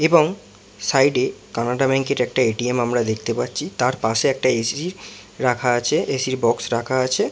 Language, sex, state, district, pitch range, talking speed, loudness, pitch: Bengali, male, West Bengal, Jalpaiguri, 115-135 Hz, 270 wpm, -20 LUFS, 125 Hz